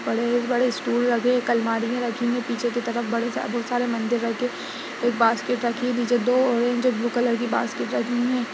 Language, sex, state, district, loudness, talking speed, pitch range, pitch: Hindi, female, Chhattisgarh, Sarguja, -23 LUFS, 220 wpm, 235-245 Hz, 240 Hz